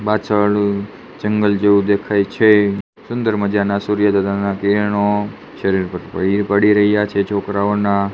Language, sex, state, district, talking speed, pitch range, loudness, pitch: Gujarati, male, Gujarat, Gandhinagar, 135 wpm, 100-105 Hz, -17 LUFS, 100 Hz